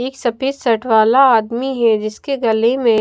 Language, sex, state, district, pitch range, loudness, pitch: Hindi, female, Bihar, Katihar, 225-265 Hz, -15 LUFS, 235 Hz